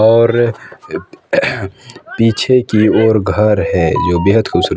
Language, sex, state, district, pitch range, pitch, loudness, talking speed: Hindi, male, Chhattisgarh, Balrampur, 105-115 Hz, 110 Hz, -13 LUFS, 140 wpm